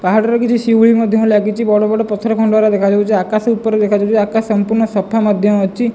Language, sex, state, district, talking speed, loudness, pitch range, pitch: Odia, male, Odisha, Khordha, 200 wpm, -13 LUFS, 210-225 Hz, 215 Hz